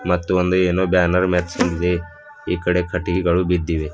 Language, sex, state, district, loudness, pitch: Kannada, male, Karnataka, Bidar, -19 LUFS, 90 Hz